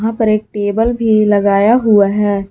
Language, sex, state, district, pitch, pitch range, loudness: Hindi, female, Jharkhand, Garhwa, 210 Hz, 205-225 Hz, -13 LUFS